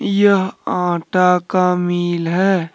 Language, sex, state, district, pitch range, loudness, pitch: Hindi, male, Jharkhand, Deoghar, 175-190 Hz, -16 LUFS, 180 Hz